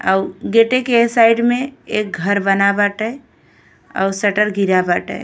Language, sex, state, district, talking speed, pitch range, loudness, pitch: Bhojpuri, female, Uttar Pradesh, Ghazipur, 150 wpm, 195-230 Hz, -16 LUFS, 210 Hz